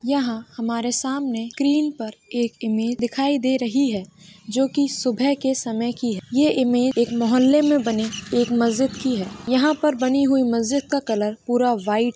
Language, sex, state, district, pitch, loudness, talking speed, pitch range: Hindi, female, Jharkhand, Sahebganj, 245 Hz, -21 LUFS, 185 wpm, 230-270 Hz